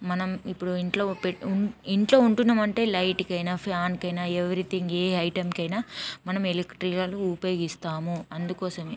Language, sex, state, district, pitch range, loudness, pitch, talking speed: Telugu, female, Andhra Pradesh, Guntur, 175-195 Hz, -27 LUFS, 185 Hz, 145 wpm